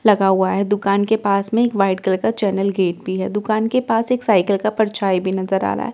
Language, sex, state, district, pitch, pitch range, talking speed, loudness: Hindi, female, Delhi, New Delhi, 200 Hz, 190-220 Hz, 275 wpm, -18 LUFS